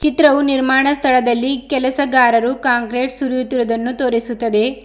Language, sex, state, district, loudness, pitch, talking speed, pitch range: Kannada, female, Karnataka, Bidar, -15 LUFS, 255 Hz, 85 wpm, 240-270 Hz